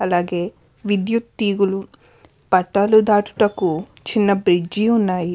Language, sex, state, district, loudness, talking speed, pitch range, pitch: Telugu, female, Andhra Pradesh, Krishna, -18 LUFS, 90 wpm, 180-210 Hz, 200 Hz